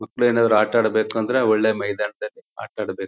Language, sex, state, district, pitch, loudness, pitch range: Kannada, male, Karnataka, Chamarajanagar, 110 Hz, -20 LUFS, 110-120 Hz